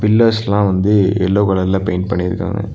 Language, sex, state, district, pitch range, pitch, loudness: Tamil, male, Tamil Nadu, Nilgiris, 95-105 Hz, 100 Hz, -15 LUFS